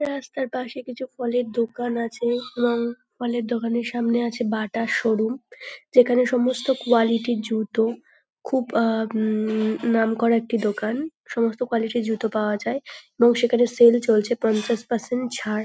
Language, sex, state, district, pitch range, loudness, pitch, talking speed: Bengali, female, West Bengal, North 24 Parganas, 225-245 Hz, -23 LUFS, 235 Hz, 140 wpm